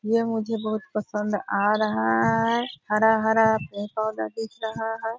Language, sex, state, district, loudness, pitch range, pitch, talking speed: Hindi, female, Bihar, Purnia, -24 LUFS, 210-225 Hz, 220 Hz, 140 wpm